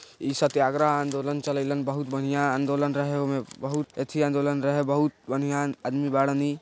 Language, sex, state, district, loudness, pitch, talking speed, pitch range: Bhojpuri, male, Bihar, East Champaran, -26 LUFS, 140 Hz, 145 wpm, 140-145 Hz